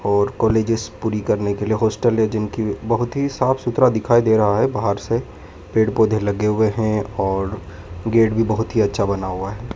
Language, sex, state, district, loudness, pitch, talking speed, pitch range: Hindi, male, Madhya Pradesh, Dhar, -19 LUFS, 110 Hz, 205 wpm, 100-115 Hz